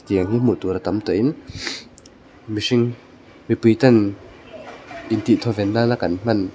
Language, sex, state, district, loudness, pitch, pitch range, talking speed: Mizo, male, Mizoram, Aizawl, -20 LUFS, 115 Hz, 100-120 Hz, 155 wpm